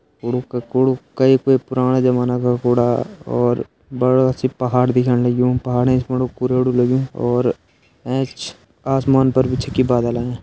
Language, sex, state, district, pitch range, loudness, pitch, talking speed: Hindi, male, Uttarakhand, Uttarkashi, 125-130 Hz, -18 LUFS, 125 Hz, 160 wpm